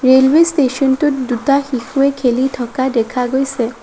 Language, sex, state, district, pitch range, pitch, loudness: Assamese, female, Assam, Sonitpur, 250-275 Hz, 260 Hz, -15 LUFS